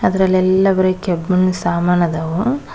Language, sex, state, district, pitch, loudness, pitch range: Kannada, female, Karnataka, Koppal, 185 Hz, -16 LUFS, 175-190 Hz